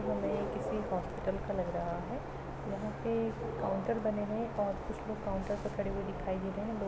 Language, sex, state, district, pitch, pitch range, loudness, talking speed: Hindi, female, Chhattisgarh, Raigarh, 210 Hz, 200-225 Hz, -36 LUFS, 235 wpm